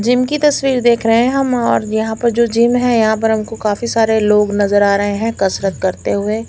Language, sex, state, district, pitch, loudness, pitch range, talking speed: Hindi, female, Chandigarh, Chandigarh, 225 Hz, -14 LUFS, 210-235 Hz, 240 wpm